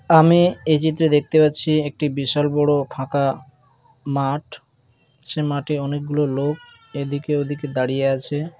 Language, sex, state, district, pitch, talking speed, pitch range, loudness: Bengali, male, West Bengal, Dakshin Dinajpur, 145 Hz, 125 wpm, 135-150 Hz, -20 LUFS